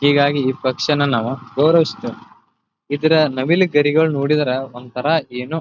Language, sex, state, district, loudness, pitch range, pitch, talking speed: Kannada, male, Karnataka, Belgaum, -17 LUFS, 130-155 Hz, 145 Hz, 115 wpm